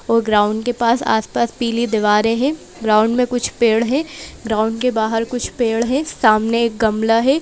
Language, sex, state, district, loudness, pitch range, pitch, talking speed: Hindi, female, Madhya Pradesh, Bhopal, -17 LUFS, 220-245 Hz, 230 Hz, 195 wpm